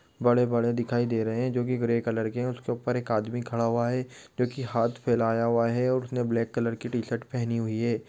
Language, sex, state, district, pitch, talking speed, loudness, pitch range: Hindi, male, Uttar Pradesh, Gorakhpur, 120 Hz, 245 wpm, -28 LUFS, 115-125 Hz